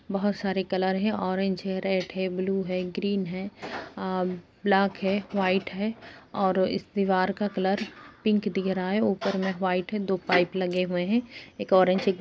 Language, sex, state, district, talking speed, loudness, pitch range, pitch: Hindi, female, Uttar Pradesh, Jalaun, 190 wpm, -27 LUFS, 185-200 Hz, 190 Hz